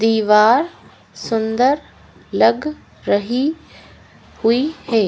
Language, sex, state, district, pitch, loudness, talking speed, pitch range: Hindi, female, Madhya Pradesh, Bhopal, 235 Hz, -17 LUFS, 70 wpm, 220-290 Hz